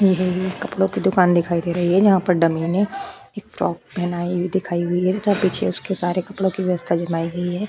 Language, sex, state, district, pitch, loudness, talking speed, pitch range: Hindi, female, Uttar Pradesh, Jyotiba Phule Nagar, 180 Hz, -20 LUFS, 235 wpm, 175-190 Hz